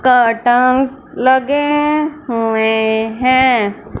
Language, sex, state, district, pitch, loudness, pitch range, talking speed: Hindi, female, Punjab, Fazilka, 255 Hz, -14 LUFS, 225-265 Hz, 60 wpm